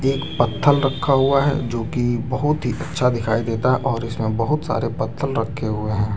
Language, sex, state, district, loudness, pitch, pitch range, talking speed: Hindi, male, Jharkhand, Deoghar, -21 LUFS, 125 Hz, 115-140 Hz, 205 wpm